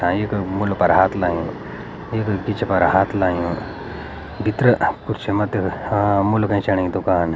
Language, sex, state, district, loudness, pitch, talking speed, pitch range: Garhwali, male, Uttarakhand, Uttarkashi, -19 LUFS, 100 Hz, 170 wpm, 90-105 Hz